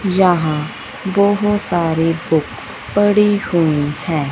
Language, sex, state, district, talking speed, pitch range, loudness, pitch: Hindi, female, Punjab, Fazilka, 95 wpm, 155-200 Hz, -16 LUFS, 175 Hz